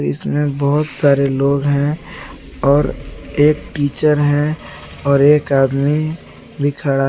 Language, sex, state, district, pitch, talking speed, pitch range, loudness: Hindi, male, Jharkhand, Garhwa, 145 Hz, 110 wpm, 140-150 Hz, -15 LUFS